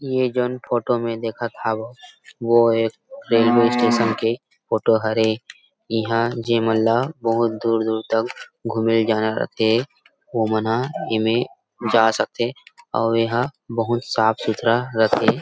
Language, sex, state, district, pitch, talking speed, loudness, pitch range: Chhattisgarhi, male, Chhattisgarh, Rajnandgaon, 115 Hz, 135 wpm, -21 LUFS, 115-120 Hz